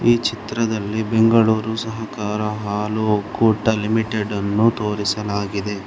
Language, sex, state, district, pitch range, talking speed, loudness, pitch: Kannada, male, Karnataka, Bangalore, 105-110 Hz, 90 wpm, -20 LUFS, 110 Hz